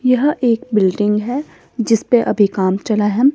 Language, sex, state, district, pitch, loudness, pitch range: Hindi, female, Himachal Pradesh, Shimla, 225 Hz, -16 LUFS, 205-255 Hz